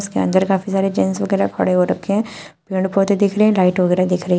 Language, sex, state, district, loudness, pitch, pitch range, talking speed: Hindi, female, Uttar Pradesh, Shamli, -17 LUFS, 190 Hz, 180-195 Hz, 275 wpm